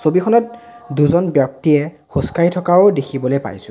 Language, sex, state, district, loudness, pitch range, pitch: Assamese, male, Assam, Sonitpur, -15 LUFS, 140-185 Hz, 155 Hz